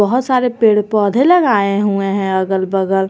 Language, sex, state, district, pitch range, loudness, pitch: Hindi, female, Jharkhand, Garhwa, 195-240 Hz, -14 LUFS, 205 Hz